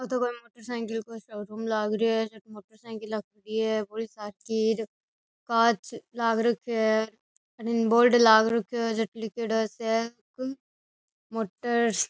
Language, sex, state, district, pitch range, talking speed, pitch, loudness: Rajasthani, female, Rajasthan, Nagaur, 220-230 Hz, 155 wpm, 225 Hz, -27 LUFS